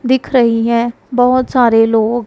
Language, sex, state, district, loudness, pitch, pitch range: Hindi, female, Punjab, Pathankot, -12 LUFS, 240 Hz, 230-250 Hz